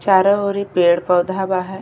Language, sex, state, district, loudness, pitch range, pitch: Bhojpuri, female, Uttar Pradesh, Deoria, -17 LUFS, 180-200 Hz, 190 Hz